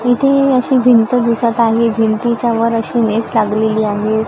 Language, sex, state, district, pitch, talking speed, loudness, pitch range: Marathi, female, Maharashtra, Gondia, 230 Hz, 155 wpm, -13 LUFS, 220-245 Hz